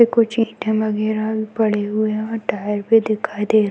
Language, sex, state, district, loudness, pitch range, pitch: Hindi, female, Uttar Pradesh, Varanasi, -19 LUFS, 215-225 Hz, 215 Hz